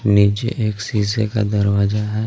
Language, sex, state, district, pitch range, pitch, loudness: Hindi, male, Jharkhand, Garhwa, 100-110 Hz, 105 Hz, -18 LUFS